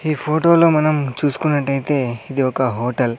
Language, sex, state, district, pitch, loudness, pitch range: Telugu, male, Andhra Pradesh, Sri Satya Sai, 140 Hz, -17 LUFS, 130-155 Hz